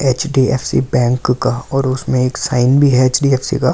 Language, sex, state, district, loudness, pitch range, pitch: Hindi, male, Delhi, New Delhi, -14 LUFS, 125-135 Hz, 130 Hz